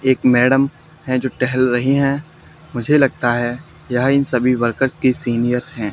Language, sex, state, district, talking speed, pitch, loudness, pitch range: Hindi, male, Haryana, Charkhi Dadri, 170 wpm, 130 Hz, -17 LUFS, 120-140 Hz